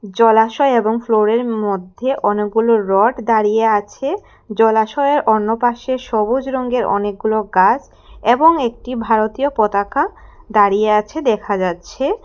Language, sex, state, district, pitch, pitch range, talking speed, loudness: Bengali, female, Tripura, West Tripura, 225 Hz, 210-255 Hz, 115 wpm, -16 LUFS